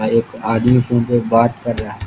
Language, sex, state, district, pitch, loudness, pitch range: Hindi, male, Bihar, East Champaran, 115 Hz, -16 LUFS, 115-120 Hz